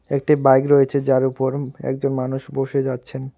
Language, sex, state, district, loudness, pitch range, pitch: Bengali, male, West Bengal, Alipurduar, -19 LUFS, 130-140 Hz, 135 Hz